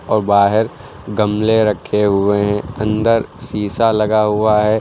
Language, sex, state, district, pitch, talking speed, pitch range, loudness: Hindi, male, Uttar Pradesh, Lucknow, 105 Hz, 135 wpm, 105-110 Hz, -16 LUFS